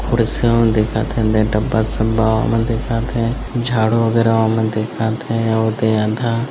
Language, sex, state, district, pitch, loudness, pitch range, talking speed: Chhattisgarhi, male, Chhattisgarh, Bilaspur, 115 Hz, -17 LUFS, 110-115 Hz, 185 wpm